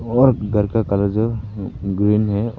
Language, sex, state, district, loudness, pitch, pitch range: Hindi, male, Arunachal Pradesh, Papum Pare, -19 LUFS, 105 Hz, 100-115 Hz